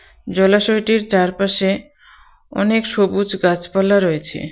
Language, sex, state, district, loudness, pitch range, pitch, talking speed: Bengali, female, West Bengal, Cooch Behar, -17 LUFS, 185-205 Hz, 195 Hz, 80 wpm